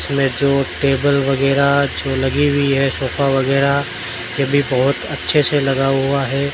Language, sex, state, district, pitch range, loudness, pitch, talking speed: Hindi, male, Rajasthan, Bikaner, 135-140 Hz, -17 LUFS, 140 Hz, 155 wpm